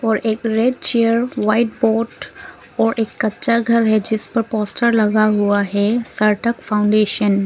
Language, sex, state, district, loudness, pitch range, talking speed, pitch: Hindi, female, Arunachal Pradesh, Papum Pare, -17 LUFS, 210-230 Hz, 155 wpm, 220 Hz